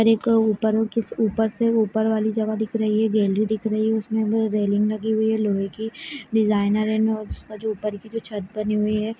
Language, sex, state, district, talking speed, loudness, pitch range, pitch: Hindi, male, Chhattisgarh, Bastar, 200 wpm, -22 LUFS, 215-220 Hz, 220 Hz